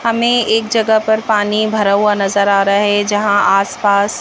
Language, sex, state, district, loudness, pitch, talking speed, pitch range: Hindi, female, Madhya Pradesh, Bhopal, -13 LUFS, 205 Hz, 185 wpm, 200-220 Hz